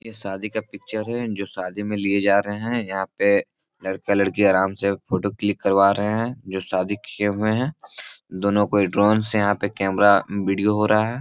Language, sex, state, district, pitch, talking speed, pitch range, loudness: Hindi, male, Bihar, Jahanabad, 100 Hz, 205 wpm, 100-105 Hz, -22 LUFS